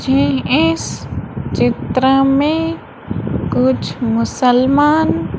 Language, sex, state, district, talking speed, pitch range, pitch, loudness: Hindi, female, Madhya Pradesh, Umaria, 65 wpm, 245-305 Hz, 265 Hz, -15 LUFS